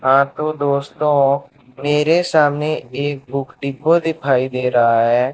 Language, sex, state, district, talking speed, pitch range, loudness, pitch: Hindi, male, Rajasthan, Bikaner, 135 wpm, 130-150 Hz, -17 LUFS, 140 Hz